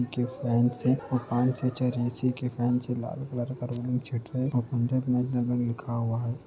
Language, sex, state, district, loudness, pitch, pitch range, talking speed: Hindi, male, Uttar Pradesh, Ghazipur, -29 LUFS, 125 Hz, 120-125 Hz, 195 wpm